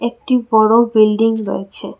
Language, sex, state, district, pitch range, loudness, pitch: Bengali, female, Tripura, West Tripura, 220-235 Hz, -14 LUFS, 225 Hz